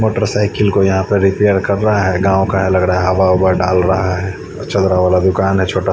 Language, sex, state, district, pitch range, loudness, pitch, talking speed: Hindi, male, Haryana, Charkhi Dadri, 95-100 Hz, -14 LUFS, 95 Hz, 245 wpm